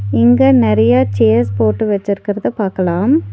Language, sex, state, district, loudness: Tamil, female, Tamil Nadu, Nilgiris, -13 LUFS